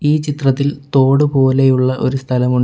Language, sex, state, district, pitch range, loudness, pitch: Malayalam, male, Kerala, Kollam, 130-140 Hz, -14 LUFS, 135 Hz